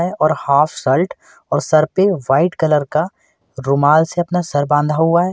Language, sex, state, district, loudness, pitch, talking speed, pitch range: Hindi, male, Uttar Pradesh, Lucknow, -16 LUFS, 155 Hz, 190 wpm, 145-175 Hz